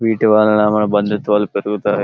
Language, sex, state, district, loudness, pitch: Telugu, male, Telangana, Karimnagar, -15 LUFS, 105 Hz